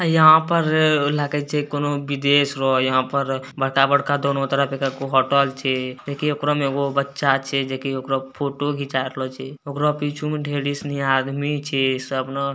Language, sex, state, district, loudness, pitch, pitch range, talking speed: Maithili, male, Bihar, Bhagalpur, -21 LUFS, 140 Hz, 135-145 Hz, 175 wpm